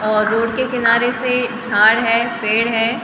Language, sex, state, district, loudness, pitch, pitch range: Hindi, female, Maharashtra, Gondia, -16 LUFS, 230 Hz, 225-245 Hz